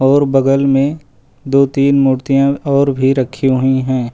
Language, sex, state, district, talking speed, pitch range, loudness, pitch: Hindi, male, Uttar Pradesh, Lucknow, 160 wpm, 130-140 Hz, -13 LUFS, 135 Hz